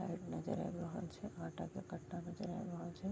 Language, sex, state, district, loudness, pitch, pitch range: Maithili, female, Bihar, Vaishali, -45 LUFS, 175 Hz, 175-190 Hz